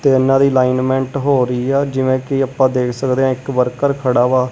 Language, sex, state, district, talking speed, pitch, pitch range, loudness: Punjabi, male, Punjab, Kapurthala, 225 wpm, 130 Hz, 125-135 Hz, -16 LUFS